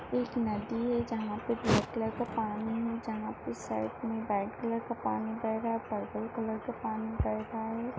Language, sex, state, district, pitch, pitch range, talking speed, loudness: Hindi, female, Maharashtra, Aurangabad, 225 Hz, 220-235 Hz, 210 wpm, -34 LUFS